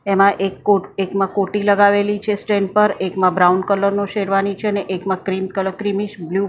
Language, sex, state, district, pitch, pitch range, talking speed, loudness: Gujarati, female, Maharashtra, Mumbai Suburban, 200 Hz, 190-205 Hz, 205 wpm, -18 LUFS